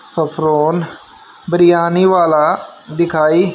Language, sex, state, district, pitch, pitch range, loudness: Hindi, female, Haryana, Charkhi Dadri, 170 Hz, 155-175 Hz, -14 LUFS